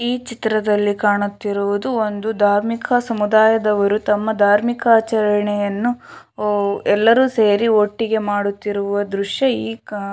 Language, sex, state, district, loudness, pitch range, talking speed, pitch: Kannada, female, Karnataka, Shimoga, -18 LUFS, 205-225 Hz, 100 wpm, 210 Hz